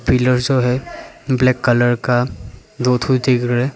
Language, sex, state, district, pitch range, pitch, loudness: Hindi, male, Arunachal Pradesh, Papum Pare, 120-130 Hz, 125 Hz, -17 LUFS